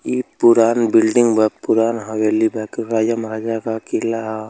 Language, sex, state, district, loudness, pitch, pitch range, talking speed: Hindi, male, Uttar Pradesh, Ghazipur, -17 LUFS, 110 Hz, 110-115 Hz, 175 wpm